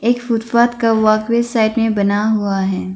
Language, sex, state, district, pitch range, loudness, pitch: Hindi, female, Arunachal Pradesh, Lower Dibang Valley, 205-235 Hz, -16 LUFS, 225 Hz